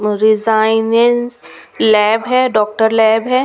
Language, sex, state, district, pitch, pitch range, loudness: Hindi, female, Punjab, Kapurthala, 225 Hz, 220-240 Hz, -13 LUFS